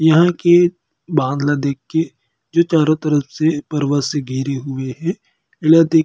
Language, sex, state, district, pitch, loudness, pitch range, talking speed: Chhattisgarhi, male, Chhattisgarh, Kabirdham, 155 Hz, -17 LUFS, 140-165 Hz, 180 wpm